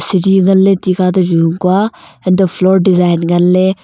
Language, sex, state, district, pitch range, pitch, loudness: Wancho, female, Arunachal Pradesh, Longding, 180-190 Hz, 185 Hz, -11 LUFS